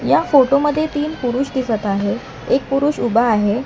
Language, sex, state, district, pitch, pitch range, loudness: Marathi, male, Maharashtra, Mumbai Suburban, 265 Hz, 230-290 Hz, -17 LUFS